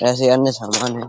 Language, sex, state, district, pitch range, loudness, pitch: Hindi, male, Uttar Pradesh, Etah, 120-130 Hz, -17 LUFS, 125 Hz